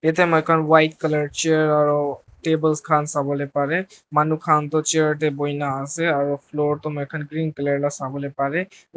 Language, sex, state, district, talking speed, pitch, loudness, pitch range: Nagamese, male, Nagaland, Dimapur, 205 wpm, 150 Hz, -21 LUFS, 145-160 Hz